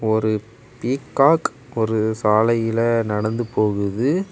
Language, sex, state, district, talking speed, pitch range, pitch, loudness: Tamil, male, Tamil Nadu, Kanyakumari, 85 wpm, 110-125 Hz, 115 Hz, -20 LUFS